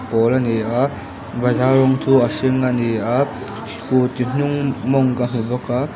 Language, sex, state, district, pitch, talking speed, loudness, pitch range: Mizo, male, Mizoram, Aizawl, 125 Hz, 190 wpm, -18 LUFS, 120-130 Hz